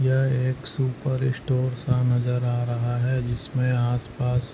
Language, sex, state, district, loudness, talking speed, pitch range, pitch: Hindi, male, Chhattisgarh, Bilaspur, -24 LUFS, 145 wpm, 120-130 Hz, 125 Hz